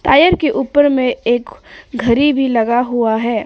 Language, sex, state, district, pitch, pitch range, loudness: Hindi, female, Arunachal Pradesh, Papum Pare, 245 Hz, 235-265 Hz, -14 LUFS